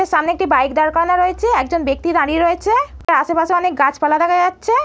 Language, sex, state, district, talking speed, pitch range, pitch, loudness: Bengali, female, West Bengal, Malda, 185 wpm, 310-360 Hz, 345 Hz, -16 LUFS